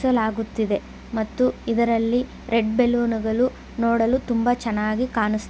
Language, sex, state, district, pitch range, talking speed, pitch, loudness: Kannada, female, Karnataka, Belgaum, 220-245 Hz, 100 wpm, 230 Hz, -22 LUFS